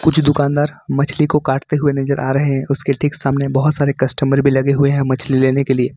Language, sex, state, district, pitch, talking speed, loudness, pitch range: Hindi, male, Jharkhand, Ranchi, 140 Hz, 240 wpm, -16 LUFS, 135-145 Hz